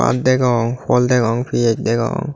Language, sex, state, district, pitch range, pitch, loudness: Chakma, male, Tripura, Dhalai, 115-130 Hz, 125 Hz, -17 LUFS